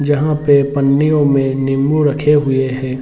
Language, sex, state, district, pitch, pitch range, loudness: Hindi, male, Bihar, Sitamarhi, 140 Hz, 135-145 Hz, -14 LUFS